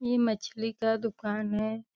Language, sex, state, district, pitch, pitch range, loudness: Hindi, female, Uttar Pradesh, Deoria, 225 Hz, 215-225 Hz, -30 LUFS